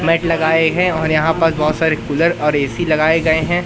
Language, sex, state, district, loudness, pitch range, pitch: Hindi, male, Madhya Pradesh, Katni, -15 LUFS, 155-165 Hz, 160 Hz